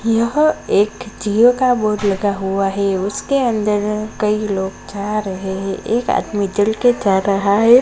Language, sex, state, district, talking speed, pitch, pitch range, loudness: Hindi, male, Bihar, Jahanabad, 170 wpm, 210 Hz, 200-230 Hz, -17 LUFS